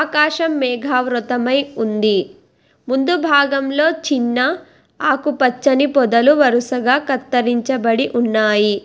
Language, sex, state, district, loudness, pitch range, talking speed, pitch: Telugu, female, Telangana, Hyderabad, -16 LUFS, 240-285 Hz, 80 wpm, 260 Hz